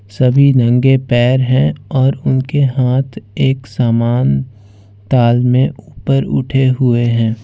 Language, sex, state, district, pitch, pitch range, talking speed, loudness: Hindi, male, Jharkhand, Ranchi, 130 Hz, 120-135 Hz, 120 wpm, -13 LUFS